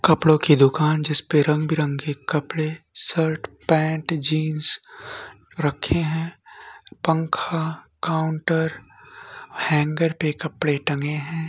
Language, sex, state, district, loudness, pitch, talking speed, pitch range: Hindi, female, Bihar, Madhepura, -22 LUFS, 160 Hz, 100 wpm, 150-165 Hz